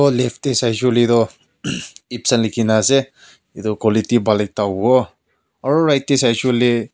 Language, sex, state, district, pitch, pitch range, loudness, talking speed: Nagamese, male, Nagaland, Kohima, 120 Hz, 110-130 Hz, -17 LUFS, 190 wpm